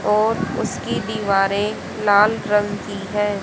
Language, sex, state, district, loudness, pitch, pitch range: Hindi, female, Haryana, Jhajjar, -20 LUFS, 205 Hz, 200-210 Hz